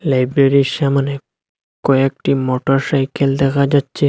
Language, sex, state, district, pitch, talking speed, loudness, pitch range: Bengali, male, Assam, Hailakandi, 140 Hz, 105 wpm, -16 LUFS, 135-140 Hz